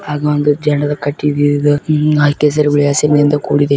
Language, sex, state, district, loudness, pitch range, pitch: Kannada, male, Karnataka, Bijapur, -13 LUFS, 145-150 Hz, 145 Hz